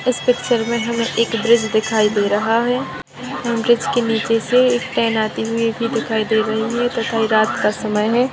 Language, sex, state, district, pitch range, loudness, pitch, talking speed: Hindi, female, Bihar, Saharsa, 220-235 Hz, -18 LUFS, 230 Hz, 210 wpm